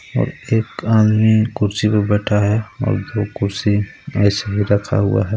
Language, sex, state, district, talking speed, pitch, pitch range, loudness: Hindi, male, Jharkhand, Garhwa, 165 wpm, 105 Hz, 105-110 Hz, -17 LUFS